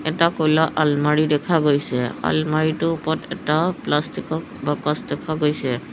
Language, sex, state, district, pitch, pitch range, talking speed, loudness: Assamese, female, Assam, Sonitpur, 155 Hz, 150-160 Hz, 130 wpm, -21 LUFS